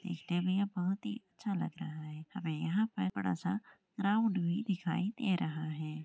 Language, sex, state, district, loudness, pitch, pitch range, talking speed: Hindi, female, Maharashtra, Aurangabad, -36 LUFS, 185 Hz, 160-200 Hz, 190 wpm